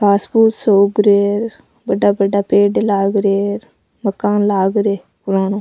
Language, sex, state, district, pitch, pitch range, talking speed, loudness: Rajasthani, female, Rajasthan, Nagaur, 200 Hz, 200-205 Hz, 170 wpm, -15 LUFS